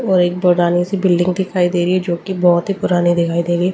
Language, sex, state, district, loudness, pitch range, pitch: Hindi, female, Delhi, New Delhi, -16 LUFS, 175-185 Hz, 180 Hz